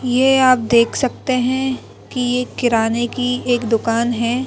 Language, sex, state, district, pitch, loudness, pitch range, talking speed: Hindi, female, Madhya Pradesh, Bhopal, 245 Hz, -17 LUFS, 235-255 Hz, 160 wpm